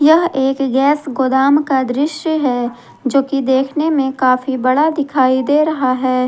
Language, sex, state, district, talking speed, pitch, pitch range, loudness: Hindi, female, Jharkhand, Garhwa, 160 wpm, 270 Hz, 260-295 Hz, -15 LUFS